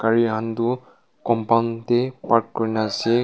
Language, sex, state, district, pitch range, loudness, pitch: Nagamese, male, Nagaland, Kohima, 115-120 Hz, -22 LUFS, 115 Hz